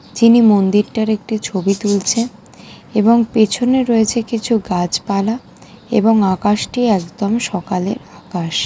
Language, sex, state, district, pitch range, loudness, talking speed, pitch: Bengali, female, West Bengal, Dakshin Dinajpur, 195-230 Hz, -16 LUFS, 105 wpm, 215 Hz